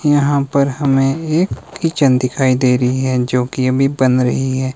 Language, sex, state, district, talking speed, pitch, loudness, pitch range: Hindi, male, Himachal Pradesh, Shimla, 190 wpm, 135 Hz, -15 LUFS, 130-140 Hz